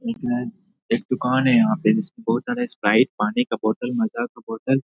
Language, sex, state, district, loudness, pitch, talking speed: Hindi, male, Bihar, Madhepura, -22 LUFS, 215 Hz, 175 wpm